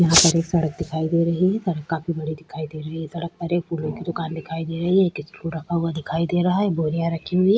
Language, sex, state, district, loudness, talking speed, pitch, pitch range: Hindi, female, Chhattisgarh, Sukma, -23 LUFS, 290 wpm, 165 Hz, 160-175 Hz